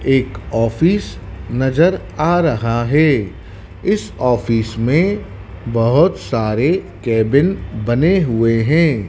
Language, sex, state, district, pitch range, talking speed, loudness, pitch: Hindi, male, Madhya Pradesh, Dhar, 105-150 Hz, 100 wpm, -16 LUFS, 115 Hz